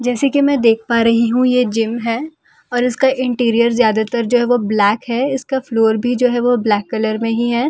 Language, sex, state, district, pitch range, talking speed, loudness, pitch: Hindi, female, Delhi, New Delhi, 230-250 Hz, 240 wpm, -16 LUFS, 240 Hz